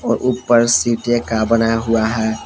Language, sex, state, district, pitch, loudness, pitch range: Hindi, male, Jharkhand, Palamu, 115 Hz, -16 LUFS, 115-120 Hz